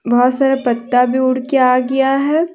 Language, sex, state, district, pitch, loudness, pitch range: Hindi, female, Jharkhand, Deoghar, 260 Hz, -14 LUFS, 250-270 Hz